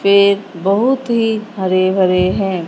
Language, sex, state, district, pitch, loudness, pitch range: Hindi, male, Punjab, Fazilka, 200 Hz, -15 LUFS, 185-215 Hz